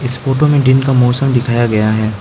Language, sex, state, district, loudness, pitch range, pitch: Hindi, male, Arunachal Pradesh, Lower Dibang Valley, -12 LUFS, 120-135 Hz, 125 Hz